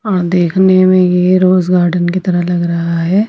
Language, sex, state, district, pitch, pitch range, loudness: Hindi, female, Himachal Pradesh, Shimla, 180 Hz, 175-185 Hz, -11 LUFS